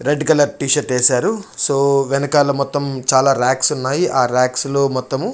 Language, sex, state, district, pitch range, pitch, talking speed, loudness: Telugu, male, Andhra Pradesh, Chittoor, 130-145 Hz, 140 Hz, 155 wpm, -16 LUFS